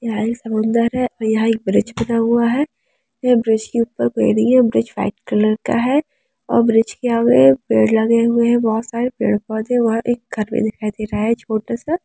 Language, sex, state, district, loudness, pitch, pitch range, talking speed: Hindi, female, Bihar, Sitamarhi, -17 LUFS, 230 Hz, 220-240 Hz, 215 wpm